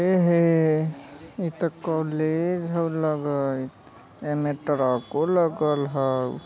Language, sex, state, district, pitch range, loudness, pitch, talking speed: Bajjika, male, Bihar, Vaishali, 140-165 Hz, -24 LUFS, 155 Hz, 100 wpm